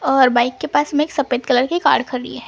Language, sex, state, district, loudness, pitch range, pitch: Hindi, female, Maharashtra, Gondia, -17 LUFS, 250-295 Hz, 265 Hz